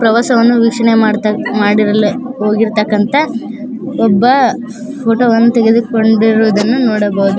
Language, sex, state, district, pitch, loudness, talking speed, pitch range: Kannada, female, Karnataka, Koppal, 230 Hz, -11 LUFS, 80 wpm, 215-240 Hz